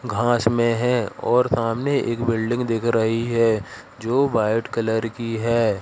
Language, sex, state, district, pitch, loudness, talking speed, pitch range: Hindi, male, Madhya Pradesh, Katni, 115 Hz, -21 LUFS, 155 wpm, 115-120 Hz